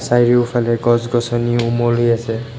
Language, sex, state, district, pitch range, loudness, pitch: Assamese, male, Assam, Kamrup Metropolitan, 115-120 Hz, -16 LUFS, 120 Hz